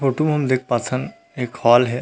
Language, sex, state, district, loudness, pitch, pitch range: Chhattisgarhi, male, Chhattisgarh, Rajnandgaon, -20 LUFS, 130 Hz, 125-150 Hz